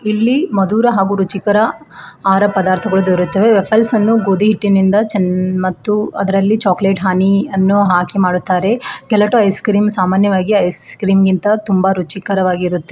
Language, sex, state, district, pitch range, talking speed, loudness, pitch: Kannada, female, Karnataka, Bidar, 185-210 Hz, 125 wpm, -14 LUFS, 195 Hz